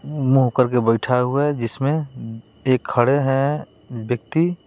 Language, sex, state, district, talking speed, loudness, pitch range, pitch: Hindi, male, Bihar, West Champaran, 130 wpm, -20 LUFS, 120-140 Hz, 130 Hz